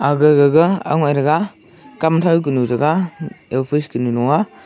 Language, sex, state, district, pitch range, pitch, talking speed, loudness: Wancho, male, Arunachal Pradesh, Longding, 140-165 Hz, 150 Hz, 105 wpm, -16 LUFS